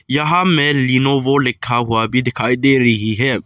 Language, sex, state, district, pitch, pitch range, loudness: Hindi, male, Arunachal Pradesh, Lower Dibang Valley, 130 Hz, 120-140 Hz, -15 LUFS